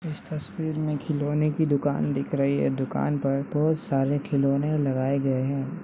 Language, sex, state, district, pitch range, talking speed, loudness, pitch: Hindi, female, Bihar, Saharsa, 140-155 Hz, 175 wpm, -26 LUFS, 145 Hz